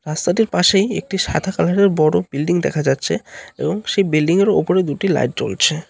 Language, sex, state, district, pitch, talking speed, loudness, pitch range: Bengali, male, West Bengal, Cooch Behar, 175 Hz, 185 wpm, -17 LUFS, 155-195 Hz